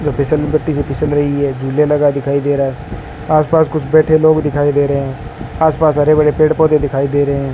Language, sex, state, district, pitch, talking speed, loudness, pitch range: Hindi, male, Rajasthan, Bikaner, 145 Hz, 220 wpm, -14 LUFS, 140-155 Hz